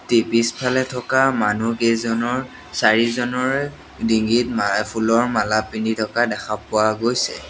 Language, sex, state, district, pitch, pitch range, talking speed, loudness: Assamese, male, Assam, Sonitpur, 115 Hz, 110-125 Hz, 120 wpm, -20 LUFS